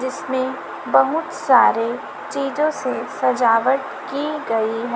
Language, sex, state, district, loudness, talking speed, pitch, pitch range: Hindi, female, Chhattisgarh, Raipur, -20 LUFS, 110 wpm, 260 Hz, 230-280 Hz